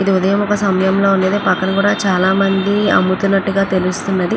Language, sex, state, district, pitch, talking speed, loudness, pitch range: Telugu, female, Andhra Pradesh, Chittoor, 195 Hz, 165 wpm, -15 LUFS, 185-195 Hz